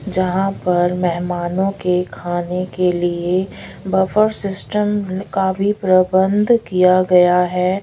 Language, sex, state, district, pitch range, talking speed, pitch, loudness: Hindi, female, Odisha, Sambalpur, 180-195 Hz, 115 wpm, 185 Hz, -17 LUFS